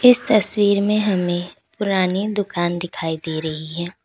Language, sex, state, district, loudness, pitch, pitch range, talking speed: Hindi, female, Uttar Pradesh, Lalitpur, -19 LUFS, 185 Hz, 175-205 Hz, 150 wpm